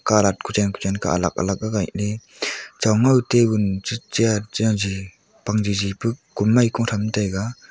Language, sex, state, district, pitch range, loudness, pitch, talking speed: Wancho, female, Arunachal Pradesh, Longding, 100-115 Hz, -21 LUFS, 105 Hz, 150 wpm